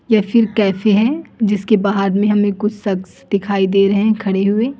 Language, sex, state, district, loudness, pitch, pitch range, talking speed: Hindi, female, Chhattisgarh, Raipur, -16 LUFS, 205 Hz, 195-220 Hz, 200 wpm